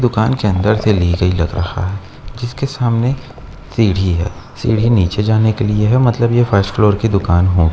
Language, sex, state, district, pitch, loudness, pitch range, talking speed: Hindi, male, Uttar Pradesh, Etah, 105 Hz, -15 LUFS, 90-115 Hz, 200 wpm